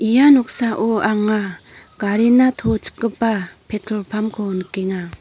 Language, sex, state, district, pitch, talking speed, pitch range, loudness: Garo, female, Meghalaya, North Garo Hills, 215 Hz, 105 wpm, 200-230 Hz, -17 LUFS